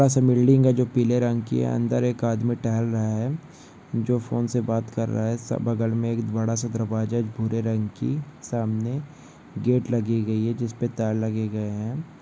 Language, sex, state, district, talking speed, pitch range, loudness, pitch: Hindi, male, Maharashtra, Pune, 205 wpm, 110-125 Hz, -25 LUFS, 115 Hz